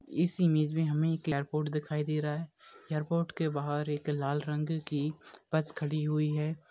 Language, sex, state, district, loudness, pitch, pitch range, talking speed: Hindi, male, Bihar, Darbhanga, -32 LUFS, 150 Hz, 150-160 Hz, 190 wpm